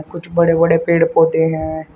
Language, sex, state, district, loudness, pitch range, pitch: Hindi, male, Uttar Pradesh, Shamli, -15 LUFS, 160-170 Hz, 165 Hz